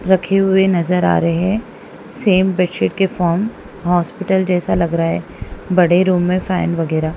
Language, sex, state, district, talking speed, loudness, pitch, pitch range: Hindi, female, Punjab, Kapurthala, 165 wpm, -16 LUFS, 180 Hz, 170-190 Hz